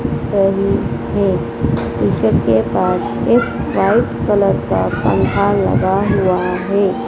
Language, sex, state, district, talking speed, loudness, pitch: Hindi, female, Madhya Pradesh, Dhar, 110 wpm, -15 LUFS, 195 Hz